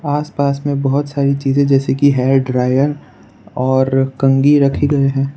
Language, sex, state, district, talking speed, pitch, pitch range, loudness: Hindi, male, Gujarat, Valsad, 155 wpm, 140 Hz, 135-145 Hz, -15 LUFS